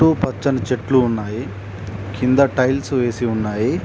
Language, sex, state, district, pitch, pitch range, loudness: Telugu, male, Telangana, Mahabubabad, 125 Hz, 105-130 Hz, -19 LUFS